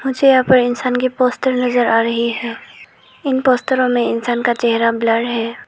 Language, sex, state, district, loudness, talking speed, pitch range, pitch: Hindi, female, Arunachal Pradesh, Lower Dibang Valley, -16 LUFS, 190 wpm, 235-255 Hz, 245 Hz